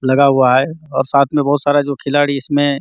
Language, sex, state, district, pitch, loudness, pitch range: Hindi, male, Chhattisgarh, Bastar, 140 Hz, -14 LUFS, 135-145 Hz